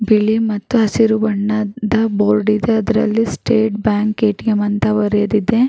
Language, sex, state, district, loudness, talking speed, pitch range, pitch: Kannada, female, Karnataka, Raichur, -16 LUFS, 125 wpm, 210-220 Hz, 215 Hz